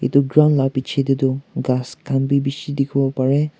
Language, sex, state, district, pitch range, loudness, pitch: Nagamese, male, Nagaland, Kohima, 135-140 Hz, -19 LUFS, 135 Hz